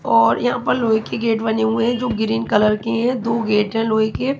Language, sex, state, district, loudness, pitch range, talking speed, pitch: Hindi, female, Haryana, Charkhi Dadri, -18 LUFS, 220-240 Hz, 260 wpm, 225 Hz